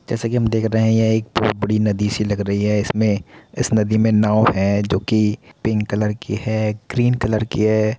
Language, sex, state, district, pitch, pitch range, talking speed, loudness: Hindi, male, Uttar Pradesh, Muzaffarnagar, 110 Hz, 105-110 Hz, 215 wpm, -19 LUFS